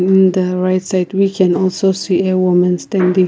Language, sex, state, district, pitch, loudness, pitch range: English, female, Nagaland, Kohima, 185 Hz, -14 LUFS, 180-190 Hz